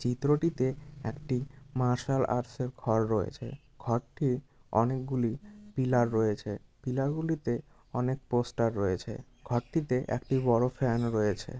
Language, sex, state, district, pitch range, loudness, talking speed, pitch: Bengali, male, West Bengal, Dakshin Dinajpur, 115-135 Hz, -31 LUFS, 125 wpm, 125 Hz